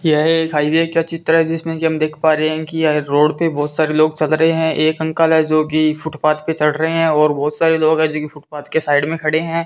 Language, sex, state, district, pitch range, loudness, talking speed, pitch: Hindi, female, Rajasthan, Bikaner, 155-160 Hz, -16 LUFS, 275 wpm, 155 Hz